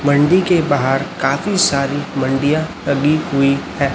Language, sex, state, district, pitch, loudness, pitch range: Hindi, male, Chhattisgarh, Raipur, 145 Hz, -16 LUFS, 140-160 Hz